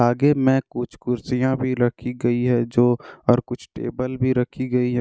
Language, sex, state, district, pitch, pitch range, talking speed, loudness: Hindi, male, Jharkhand, Deoghar, 125 Hz, 120-130 Hz, 190 wpm, -22 LUFS